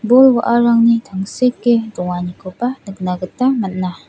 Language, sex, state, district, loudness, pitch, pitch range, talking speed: Garo, female, Meghalaya, South Garo Hills, -16 LUFS, 225 Hz, 185-245 Hz, 105 wpm